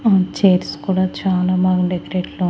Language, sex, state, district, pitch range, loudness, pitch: Telugu, female, Andhra Pradesh, Annamaya, 180-190 Hz, -18 LUFS, 185 Hz